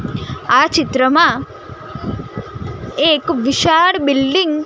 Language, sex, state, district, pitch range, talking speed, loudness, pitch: Gujarati, female, Gujarat, Gandhinagar, 280-330 Hz, 75 wpm, -14 LUFS, 310 Hz